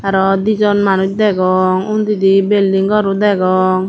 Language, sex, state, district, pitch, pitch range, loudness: Chakma, female, Tripura, Dhalai, 195 Hz, 190-205 Hz, -13 LUFS